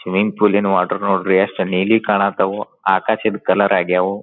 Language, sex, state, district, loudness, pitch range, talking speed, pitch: Kannada, male, Karnataka, Dharwad, -17 LUFS, 95-100 Hz, 155 wpm, 95 Hz